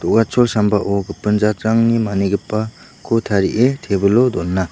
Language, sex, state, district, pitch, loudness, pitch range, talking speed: Garo, male, Meghalaya, West Garo Hills, 105 Hz, -17 LUFS, 100-115 Hz, 100 wpm